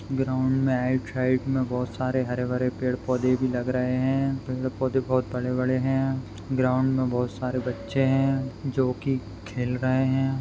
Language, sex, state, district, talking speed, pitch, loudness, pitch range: Hindi, female, Uttar Pradesh, Muzaffarnagar, 180 wpm, 130 Hz, -26 LUFS, 125-130 Hz